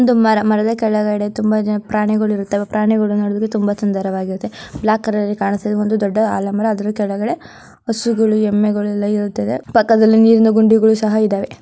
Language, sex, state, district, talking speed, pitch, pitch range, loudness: Kannada, female, Karnataka, Mysore, 160 wpm, 215 Hz, 205-220 Hz, -16 LUFS